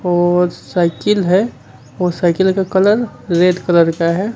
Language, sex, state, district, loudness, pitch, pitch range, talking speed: Hindi, male, Bihar, Kaimur, -15 LUFS, 180 Hz, 170-190 Hz, 150 wpm